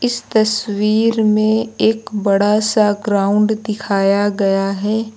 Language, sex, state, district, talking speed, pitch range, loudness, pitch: Hindi, female, Uttar Pradesh, Lucknow, 115 wpm, 205-220 Hz, -16 LUFS, 215 Hz